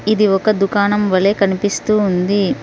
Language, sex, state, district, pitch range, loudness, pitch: Telugu, female, Telangana, Mahabubabad, 195-210 Hz, -15 LUFS, 200 Hz